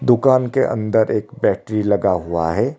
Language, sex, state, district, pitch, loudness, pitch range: Hindi, male, Odisha, Khordha, 110 Hz, -18 LUFS, 100-130 Hz